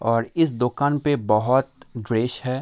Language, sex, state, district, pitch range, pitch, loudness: Hindi, male, Bihar, Kishanganj, 115-140 Hz, 125 Hz, -22 LUFS